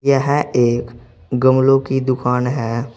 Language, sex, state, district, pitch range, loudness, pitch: Hindi, male, Uttar Pradesh, Saharanpur, 120-135 Hz, -17 LUFS, 125 Hz